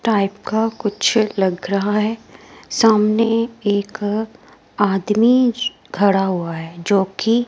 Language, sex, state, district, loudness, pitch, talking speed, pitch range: Hindi, female, Himachal Pradesh, Shimla, -18 LUFS, 210 Hz, 120 wpm, 195-225 Hz